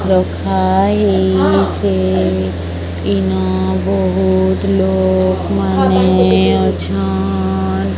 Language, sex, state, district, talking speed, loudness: Odia, male, Odisha, Sambalpur, 60 wpm, -14 LUFS